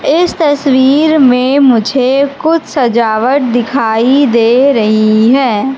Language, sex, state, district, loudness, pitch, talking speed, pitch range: Hindi, female, Madhya Pradesh, Katni, -9 LUFS, 260 Hz, 105 wpm, 235-280 Hz